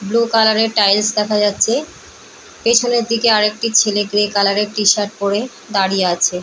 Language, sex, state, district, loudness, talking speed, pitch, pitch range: Bengali, female, West Bengal, Paschim Medinipur, -15 LUFS, 195 wpm, 210 Hz, 200-225 Hz